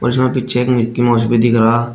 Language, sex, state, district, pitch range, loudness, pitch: Hindi, male, Uttar Pradesh, Shamli, 115-125 Hz, -14 LUFS, 120 Hz